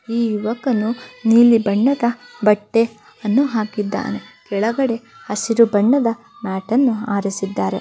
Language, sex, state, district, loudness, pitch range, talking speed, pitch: Kannada, female, Karnataka, Belgaum, -18 LUFS, 210-240 Hz, 85 wpm, 225 Hz